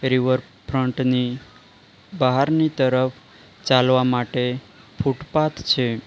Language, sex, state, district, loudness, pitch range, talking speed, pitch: Gujarati, male, Gujarat, Valsad, -21 LUFS, 125-135 Hz, 90 wpm, 130 Hz